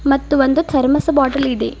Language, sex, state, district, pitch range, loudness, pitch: Kannada, female, Karnataka, Bidar, 270-290 Hz, -15 LUFS, 275 Hz